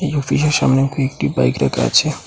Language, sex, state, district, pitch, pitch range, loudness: Bengali, male, Assam, Hailakandi, 135 Hz, 120-150 Hz, -16 LUFS